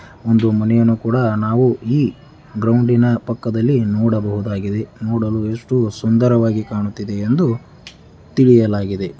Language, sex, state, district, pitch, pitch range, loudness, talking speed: Kannada, male, Karnataka, Chamarajanagar, 115 Hz, 110-120 Hz, -17 LUFS, 90 wpm